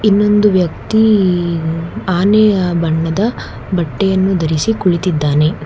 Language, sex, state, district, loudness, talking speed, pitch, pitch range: Kannada, female, Karnataka, Bangalore, -14 LUFS, 75 wpm, 185 Hz, 165-205 Hz